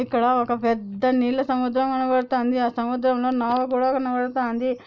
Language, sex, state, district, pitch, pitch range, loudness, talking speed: Telugu, female, Andhra Pradesh, Anantapur, 250 Hz, 245-255 Hz, -22 LUFS, 135 wpm